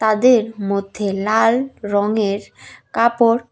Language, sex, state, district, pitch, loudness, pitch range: Bengali, female, Tripura, West Tripura, 220 Hz, -18 LUFS, 205-235 Hz